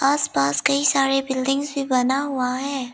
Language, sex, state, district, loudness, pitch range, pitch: Hindi, female, Arunachal Pradesh, Lower Dibang Valley, -21 LUFS, 255-280 Hz, 270 Hz